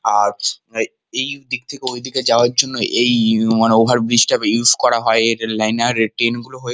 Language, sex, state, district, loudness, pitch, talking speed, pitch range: Bengali, male, West Bengal, Kolkata, -16 LUFS, 120 Hz, 170 wpm, 115-125 Hz